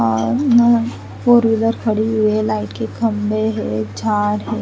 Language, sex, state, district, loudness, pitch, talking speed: Hindi, female, Chandigarh, Chandigarh, -17 LUFS, 215 Hz, 170 wpm